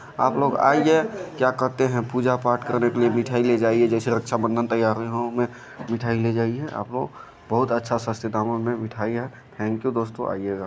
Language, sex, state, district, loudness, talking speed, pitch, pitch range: Hindi, male, Bihar, Jamui, -23 LUFS, 195 wpm, 120 Hz, 115-125 Hz